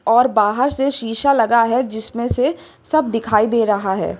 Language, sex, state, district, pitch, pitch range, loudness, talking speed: Hindi, female, Uttar Pradesh, Lucknow, 230 Hz, 220-265 Hz, -17 LUFS, 185 wpm